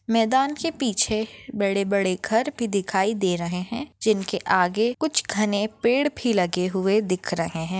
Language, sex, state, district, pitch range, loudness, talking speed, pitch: Hindi, female, Maharashtra, Nagpur, 190-235 Hz, -23 LUFS, 160 wpm, 215 Hz